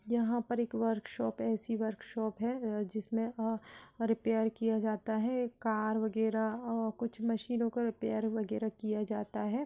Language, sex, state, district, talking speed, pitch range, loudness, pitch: Hindi, female, Uttar Pradesh, Budaun, 175 wpm, 220-230 Hz, -35 LUFS, 225 Hz